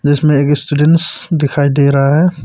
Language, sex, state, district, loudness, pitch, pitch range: Hindi, male, Arunachal Pradesh, Papum Pare, -12 LUFS, 145 Hz, 140-155 Hz